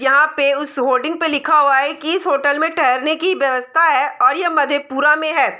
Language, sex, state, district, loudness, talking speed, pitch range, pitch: Hindi, female, Bihar, Saharsa, -16 LUFS, 225 wpm, 280-330 Hz, 300 Hz